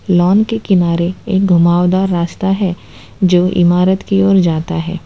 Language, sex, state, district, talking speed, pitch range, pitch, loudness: Hindi, female, Gujarat, Valsad, 155 wpm, 175-195 Hz, 180 Hz, -13 LUFS